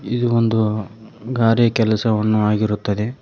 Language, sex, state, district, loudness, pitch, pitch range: Kannada, male, Karnataka, Koppal, -18 LUFS, 110 Hz, 110-115 Hz